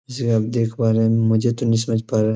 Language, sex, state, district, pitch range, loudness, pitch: Hindi, male, Jharkhand, Jamtara, 110-115 Hz, -19 LUFS, 115 Hz